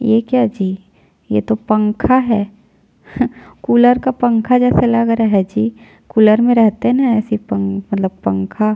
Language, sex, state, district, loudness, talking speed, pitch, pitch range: Hindi, female, Chhattisgarh, Jashpur, -15 LUFS, 170 wpm, 215 Hz, 195-240 Hz